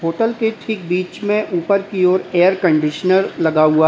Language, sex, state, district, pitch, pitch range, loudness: Hindi, male, Uttar Pradesh, Lalitpur, 185 Hz, 165-205 Hz, -17 LUFS